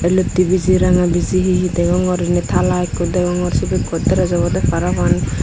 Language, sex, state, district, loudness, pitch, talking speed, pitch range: Chakma, female, Tripura, Unakoti, -16 LUFS, 180 Hz, 165 wpm, 175-185 Hz